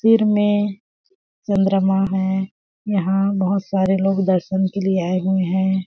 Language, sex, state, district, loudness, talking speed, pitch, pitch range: Hindi, female, Chhattisgarh, Balrampur, -19 LUFS, 155 wpm, 195 Hz, 190-200 Hz